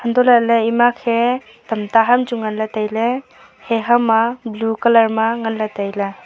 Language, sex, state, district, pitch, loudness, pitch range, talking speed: Wancho, female, Arunachal Pradesh, Longding, 230 Hz, -17 LUFS, 220-240 Hz, 220 wpm